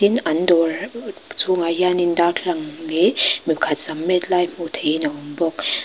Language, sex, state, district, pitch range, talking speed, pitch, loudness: Mizo, female, Mizoram, Aizawl, 165-205 Hz, 175 wpm, 175 Hz, -19 LUFS